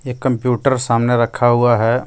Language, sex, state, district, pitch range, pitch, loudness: Hindi, male, Jharkhand, Deoghar, 120-125 Hz, 120 Hz, -16 LUFS